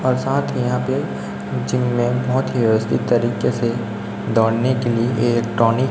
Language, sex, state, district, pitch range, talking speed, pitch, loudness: Hindi, male, Chhattisgarh, Raipur, 110-125 Hz, 175 wpm, 120 Hz, -19 LUFS